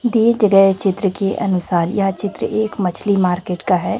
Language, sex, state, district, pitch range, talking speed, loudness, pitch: Hindi, female, Chhattisgarh, Raipur, 180-210 Hz, 180 wpm, -17 LUFS, 195 Hz